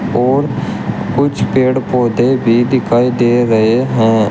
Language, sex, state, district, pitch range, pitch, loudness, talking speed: Hindi, male, Uttar Pradesh, Shamli, 115-130 Hz, 125 Hz, -13 LUFS, 125 wpm